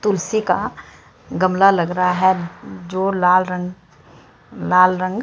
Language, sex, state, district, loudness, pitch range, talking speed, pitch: Hindi, female, Bihar, Katihar, -17 LUFS, 180-190 Hz, 125 wpm, 185 Hz